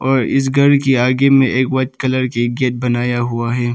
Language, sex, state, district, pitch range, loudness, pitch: Hindi, male, Arunachal Pradesh, Papum Pare, 120-135 Hz, -15 LUFS, 130 Hz